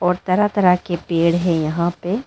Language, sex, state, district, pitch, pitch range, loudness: Hindi, female, Arunachal Pradesh, Lower Dibang Valley, 180 Hz, 170-185 Hz, -18 LUFS